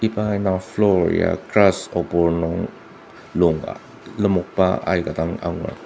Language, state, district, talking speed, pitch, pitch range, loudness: Ao, Nagaland, Dimapur, 125 wpm, 95 Hz, 85-105 Hz, -20 LUFS